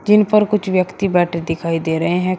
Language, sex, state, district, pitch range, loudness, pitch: Hindi, male, Uttar Pradesh, Shamli, 170-205 Hz, -17 LUFS, 185 Hz